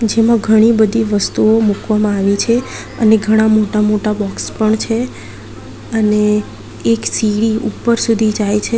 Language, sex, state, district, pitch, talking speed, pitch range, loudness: Gujarati, female, Gujarat, Valsad, 215 Hz, 145 wpm, 210-225 Hz, -14 LUFS